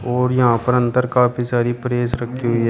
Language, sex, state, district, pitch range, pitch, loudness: Hindi, male, Uttar Pradesh, Shamli, 120-125 Hz, 120 Hz, -18 LUFS